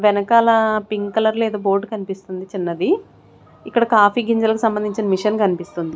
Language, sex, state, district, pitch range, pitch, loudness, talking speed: Telugu, female, Andhra Pradesh, Sri Satya Sai, 195-225 Hz, 210 Hz, -18 LUFS, 140 wpm